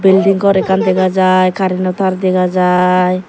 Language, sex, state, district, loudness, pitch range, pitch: Chakma, female, Tripura, Dhalai, -12 LUFS, 185-190 Hz, 185 Hz